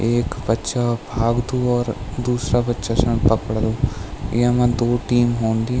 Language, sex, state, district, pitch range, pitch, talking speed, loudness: Garhwali, male, Uttarakhand, Tehri Garhwal, 115-120 Hz, 120 Hz, 125 wpm, -20 LUFS